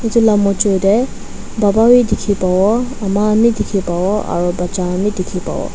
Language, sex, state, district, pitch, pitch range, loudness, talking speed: Nagamese, female, Nagaland, Dimapur, 205 Hz, 185-215 Hz, -15 LUFS, 190 wpm